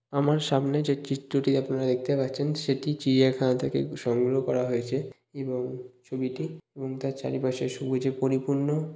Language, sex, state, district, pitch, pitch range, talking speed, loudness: Bengali, male, West Bengal, Malda, 135 Hz, 130-140 Hz, 135 wpm, -28 LUFS